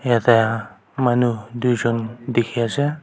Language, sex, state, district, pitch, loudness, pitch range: Nagamese, male, Nagaland, Kohima, 120 Hz, -20 LUFS, 115-125 Hz